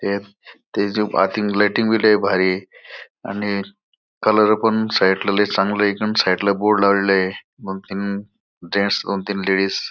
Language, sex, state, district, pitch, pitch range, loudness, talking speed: Marathi, male, Maharashtra, Aurangabad, 100 Hz, 95-105 Hz, -19 LUFS, 150 wpm